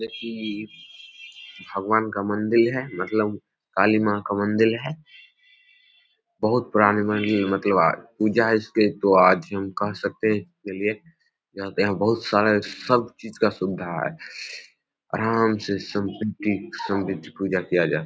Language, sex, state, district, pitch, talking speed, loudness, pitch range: Hindi, male, Bihar, Samastipur, 105 Hz, 155 wpm, -23 LUFS, 100-115 Hz